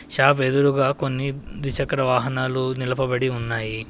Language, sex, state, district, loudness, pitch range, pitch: Telugu, male, Telangana, Adilabad, -22 LUFS, 130-135 Hz, 130 Hz